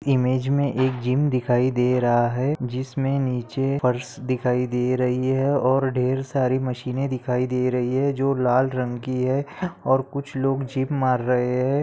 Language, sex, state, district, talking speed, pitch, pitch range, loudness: Hindi, male, West Bengal, Kolkata, 185 wpm, 130 Hz, 125-135 Hz, -23 LUFS